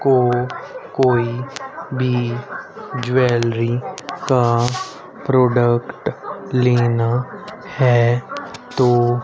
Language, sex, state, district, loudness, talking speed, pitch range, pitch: Hindi, male, Haryana, Rohtak, -18 LUFS, 60 wpm, 120-130 Hz, 125 Hz